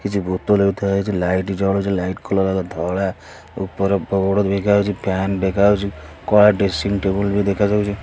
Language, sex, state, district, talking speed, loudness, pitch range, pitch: Odia, male, Odisha, Khordha, 170 wpm, -19 LUFS, 95-100 Hz, 100 Hz